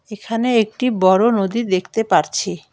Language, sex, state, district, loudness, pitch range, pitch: Bengali, female, West Bengal, Alipurduar, -17 LUFS, 190-230 Hz, 215 Hz